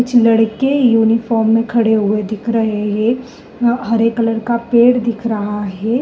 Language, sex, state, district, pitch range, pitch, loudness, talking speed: Hindi, female, Uttar Pradesh, Jalaun, 220-240 Hz, 230 Hz, -15 LUFS, 160 wpm